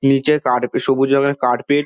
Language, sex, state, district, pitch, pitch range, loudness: Bengali, male, West Bengal, Dakshin Dinajpur, 135 Hz, 125-140 Hz, -16 LUFS